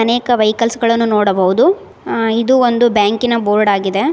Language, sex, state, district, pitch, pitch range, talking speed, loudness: Kannada, female, Karnataka, Koppal, 230 Hz, 210-240 Hz, 145 wpm, -14 LUFS